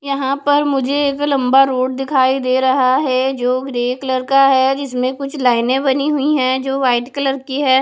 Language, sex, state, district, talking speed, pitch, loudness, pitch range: Hindi, female, Odisha, Nuapada, 200 wpm, 265 Hz, -16 LUFS, 255-275 Hz